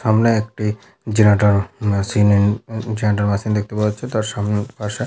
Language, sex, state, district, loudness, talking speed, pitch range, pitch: Bengali, male, West Bengal, Paschim Medinipur, -18 LUFS, 155 wpm, 105-110 Hz, 105 Hz